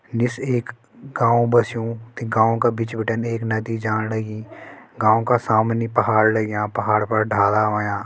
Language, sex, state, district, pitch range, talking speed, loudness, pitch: Hindi, male, Uttarakhand, Uttarkashi, 110-115 Hz, 165 wpm, -20 LUFS, 115 Hz